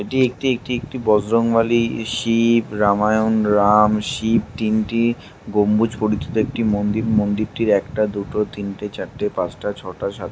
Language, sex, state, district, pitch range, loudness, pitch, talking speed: Bengali, male, West Bengal, Malda, 105-115 Hz, -19 LUFS, 110 Hz, 140 wpm